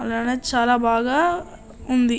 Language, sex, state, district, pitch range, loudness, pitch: Telugu, male, Andhra Pradesh, Srikakulam, 235-260 Hz, -21 LUFS, 245 Hz